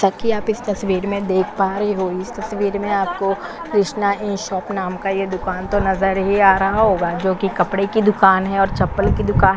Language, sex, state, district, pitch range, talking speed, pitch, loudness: Hindi, female, Chhattisgarh, Korba, 190-205 Hz, 225 wpm, 195 Hz, -18 LUFS